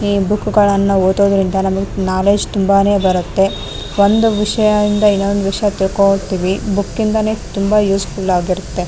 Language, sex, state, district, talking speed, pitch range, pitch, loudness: Kannada, female, Karnataka, Raichur, 120 wpm, 190-205 Hz, 200 Hz, -14 LUFS